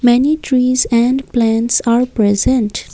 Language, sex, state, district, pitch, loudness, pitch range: English, female, Assam, Kamrup Metropolitan, 240 Hz, -14 LUFS, 230-255 Hz